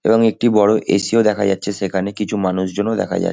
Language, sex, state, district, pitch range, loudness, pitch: Bengali, male, West Bengal, Kolkata, 95-110 Hz, -17 LUFS, 100 Hz